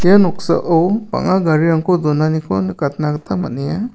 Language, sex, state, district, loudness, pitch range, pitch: Garo, male, Meghalaya, South Garo Hills, -16 LUFS, 150-185 Hz, 160 Hz